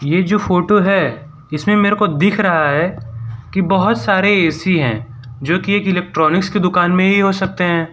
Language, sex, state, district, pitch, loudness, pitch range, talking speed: Hindi, male, Gujarat, Valsad, 180 Hz, -15 LUFS, 155-195 Hz, 180 wpm